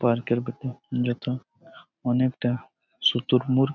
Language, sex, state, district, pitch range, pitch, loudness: Bengali, male, West Bengal, Jhargram, 120-130 Hz, 125 Hz, -26 LUFS